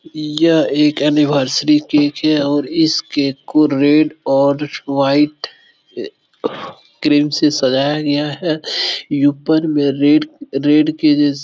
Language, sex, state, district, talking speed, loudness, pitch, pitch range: Hindi, male, Bihar, Supaul, 130 wpm, -15 LUFS, 150 Hz, 145-160 Hz